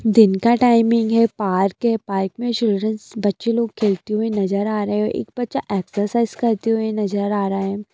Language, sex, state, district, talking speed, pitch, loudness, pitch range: Hindi, female, Bihar, Jamui, 205 wpm, 215 Hz, -19 LUFS, 200-230 Hz